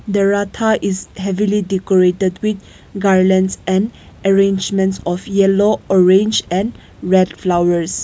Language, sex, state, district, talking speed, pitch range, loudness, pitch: English, female, Nagaland, Kohima, 110 wpm, 185-200 Hz, -16 LUFS, 195 Hz